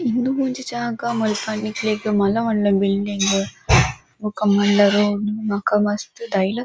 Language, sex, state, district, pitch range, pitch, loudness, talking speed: Tulu, female, Karnataka, Dakshina Kannada, 205-230 Hz, 210 Hz, -20 LUFS, 135 wpm